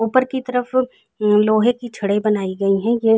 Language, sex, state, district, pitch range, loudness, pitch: Hindi, female, Uttar Pradesh, Jalaun, 210-250 Hz, -19 LUFS, 225 Hz